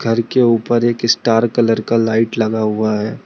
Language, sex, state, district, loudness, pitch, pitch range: Hindi, male, Arunachal Pradesh, Lower Dibang Valley, -15 LUFS, 115 Hz, 110-120 Hz